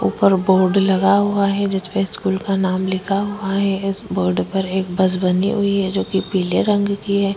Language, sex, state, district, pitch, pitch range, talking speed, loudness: Hindi, female, Chhattisgarh, Korba, 195 Hz, 190-200 Hz, 185 wpm, -18 LUFS